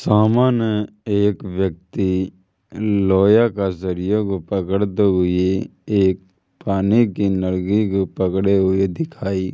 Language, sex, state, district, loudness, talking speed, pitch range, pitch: Hindi, male, Rajasthan, Jaipur, -19 LUFS, 105 wpm, 95-105 Hz, 95 Hz